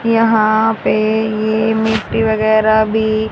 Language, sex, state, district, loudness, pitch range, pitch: Hindi, female, Haryana, Charkhi Dadri, -14 LUFS, 215-220 Hz, 220 Hz